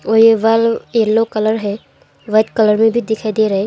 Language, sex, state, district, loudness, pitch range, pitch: Hindi, female, Arunachal Pradesh, Longding, -14 LUFS, 215-225 Hz, 220 Hz